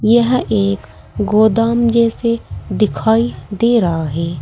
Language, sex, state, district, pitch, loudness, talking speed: Hindi, female, Uttar Pradesh, Saharanpur, 210 Hz, -15 LUFS, 110 wpm